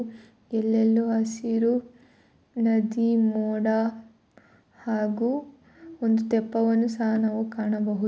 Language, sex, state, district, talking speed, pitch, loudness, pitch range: Kannada, female, Karnataka, Mysore, 75 wpm, 225 Hz, -25 LUFS, 220-230 Hz